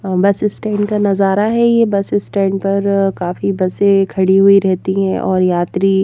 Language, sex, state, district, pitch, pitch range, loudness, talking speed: Hindi, female, Haryana, Jhajjar, 195 Hz, 190-200 Hz, -14 LUFS, 160 wpm